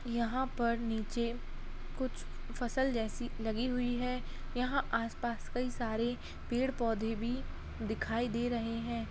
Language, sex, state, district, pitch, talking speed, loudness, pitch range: Hindi, female, Bihar, Kishanganj, 240 Hz, 120 wpm, -36 LUFS, 230-250 Hz